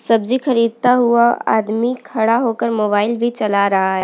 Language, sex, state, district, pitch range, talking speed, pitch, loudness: Hindi, female, Uttarakhand, Uttarkashi, 215-240 Hz, 165 wpm, 230 Hz, -16 LUFS